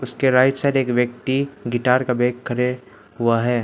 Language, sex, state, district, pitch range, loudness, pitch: Hindi, male, Arunachal Pradesh, Lower Dibang Valley, 120-130 Hz, -20 LUFS, 125 Hz